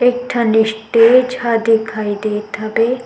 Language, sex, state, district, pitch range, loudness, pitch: Chhattisgarhi, female, Chhattisgarh, Sukma, 220-245 Hz, -15 LUFS, 225 Hz